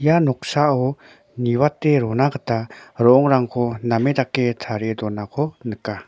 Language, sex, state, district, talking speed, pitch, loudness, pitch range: Garo, male, Meghalaya, North Garo Hills, 110 wpm, 125 Hz, -20 LUFS, 115-140 Hz